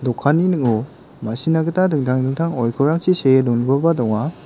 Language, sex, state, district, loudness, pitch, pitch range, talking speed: Garo, male, Meghalaya, West Garo Hills, -18 LUFS, 135 Hz, 125-160 Hz, 135 wpm